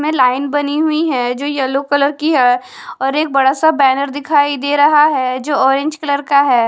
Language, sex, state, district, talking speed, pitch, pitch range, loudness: Hindi, female, Haryana, Charkhi Dadri, 215 wpm, 285 Hz, 265-295 Hz, -14 LUFS